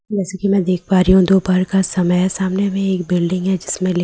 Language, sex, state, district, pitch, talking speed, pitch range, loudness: Hindi, female, Bihar, Katihar, 185 Hz, 265 wpm, 185-195 Hz, -16 LUFS